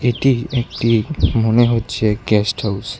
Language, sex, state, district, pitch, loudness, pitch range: Bengali, male, Tripura, West Tripura, 115 Hz, -17 LUFS, 105-120 Hz